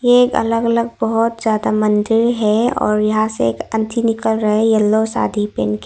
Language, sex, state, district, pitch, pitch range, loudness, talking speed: Hindi, female, Arunachal Pradesh, Longding, 220 Hz, 215-230 Hz, -16 LUFS, 185 wpm